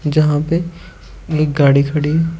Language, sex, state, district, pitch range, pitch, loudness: Hindi, male, Uttar Pradesh, Shamli, 145-165 Hz, 155 Hz, -15 LUFS